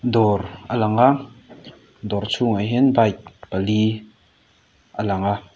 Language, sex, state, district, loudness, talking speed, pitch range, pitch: Mizo, male, Mizoram, Aizawl, -20 LUFS, 130 wpm, 100-120 Hz, 105 Hz